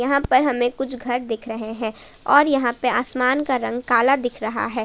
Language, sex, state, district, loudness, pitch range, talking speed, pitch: Hindi, female, Jharkhand, Palamu, -20 LUFS, 235-265 Hz, 220 wpm, 245 Hz